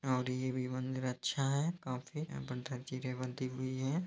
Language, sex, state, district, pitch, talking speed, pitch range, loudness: Hindi, male, Bihar, East Champaran, 130 Hz, 190 wpm, 130-135 Hz, -38 LUFS